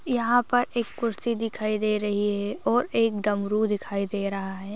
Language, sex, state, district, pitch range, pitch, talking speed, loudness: Hindi, female, Bihar, Jahanabad, 205-235 Hz, 215 Hz, 190 wpm, -26 LUFS